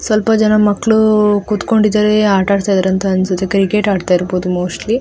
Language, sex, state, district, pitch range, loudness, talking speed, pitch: Kannada, female, Karnataka, Dakshina Kannada, 190-215 Hz, -13 LUFS, 145 wpm, 205 Hz